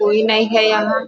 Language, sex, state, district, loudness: Hindi, female, Uttar Pradesh, Gorakhpur, -14 LUFS